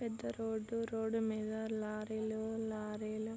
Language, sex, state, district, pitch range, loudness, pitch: Telugu, female, Andhra Pradesh, Krishna, 215-225 Hz, -40 LUFS, 220 Hz